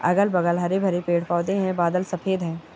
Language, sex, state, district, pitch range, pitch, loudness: Hindi, male, Chhattisgarh, Bastar, 170-190 Hz, 180 Hz, -23 LUFS